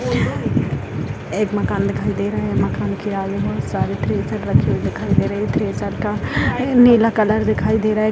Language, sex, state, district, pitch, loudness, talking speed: Hindi, female, Bihar, Purnia, 145 Hz, -19 LUFS, 190 wpm